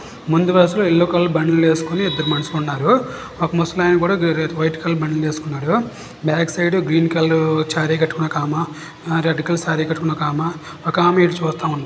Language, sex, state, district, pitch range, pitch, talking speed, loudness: Telugu, male, Telangana, Nalgonda, 155-170 Hz, 160 Hz, 180 wpm, -18 LUFS